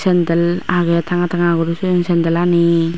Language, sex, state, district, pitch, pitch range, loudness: Chakma, female, Tripura, West Tripura, 170 Hz, 170-175 Hz, -16 LUFS